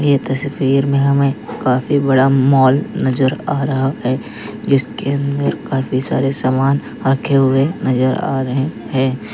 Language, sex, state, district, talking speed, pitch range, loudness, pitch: Hindi, male, Uttar Pradesh, Lalitpur, 140 wpm, 130-140 Hz, -16 LUFS, 135 Hz